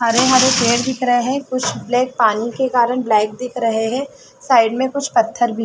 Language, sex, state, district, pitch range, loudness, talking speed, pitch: Hindi, female, Chhattisgarh, Bastar, 235-260 Hz, -16 LUFS, 225 wpm, 250 Hz